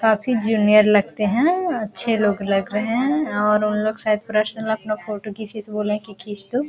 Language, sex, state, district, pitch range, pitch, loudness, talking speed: Hindi, female, Bihar, Araria, 210-225 Hz, 215 Hz, -20 LUFS, 195 wpm